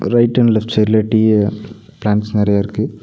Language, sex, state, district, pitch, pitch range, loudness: Tamil, male, Tamil Nadu, Nilgiris, 110 Hz, 105-110 Hz, -15 LUFS